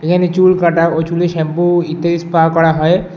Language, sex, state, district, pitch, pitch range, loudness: Bengali, male, West Bengal, Alipurduar, 170 Hz, 165-175 Hz, -13 LUFS